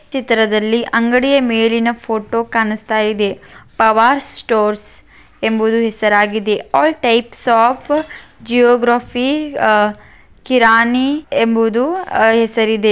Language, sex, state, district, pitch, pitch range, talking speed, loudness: Kannada, female, Karnataka, Belgaum, 230 Hz, 220-250 Hz, 75 wpm, -14 LUFS